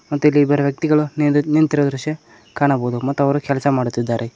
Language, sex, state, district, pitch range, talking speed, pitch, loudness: Kannada, male, Karnataka, Koppal, 125-150 Hz, 165 wpm, 140 Hz, -18 LUFS